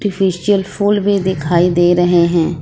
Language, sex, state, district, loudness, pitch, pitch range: Hindi, female, Jharkhand, Ranchi, -14 LUFS, 180 Hz, 175-200 Hz